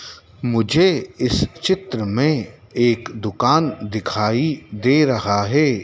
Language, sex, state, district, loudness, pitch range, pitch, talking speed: Hindi, male, Madhya Pradesh, Dhar, -19 LUFS, 110-150 Hz, 120 Hz, 105 wpm